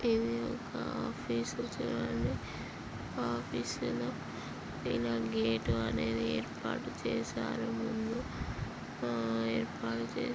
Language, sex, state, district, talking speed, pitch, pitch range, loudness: Telugu, female, Andhra Pradesh, Srikakulam, 85 wpm, 115 Hz, 115-120 Hz, -36 LUFS